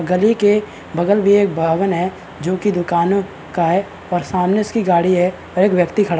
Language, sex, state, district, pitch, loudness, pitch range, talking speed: Hindi, male, Uttarakhand, Uttarkashi, 185 Hz, -17 LUFS, 175-200 Hz, 205 wpm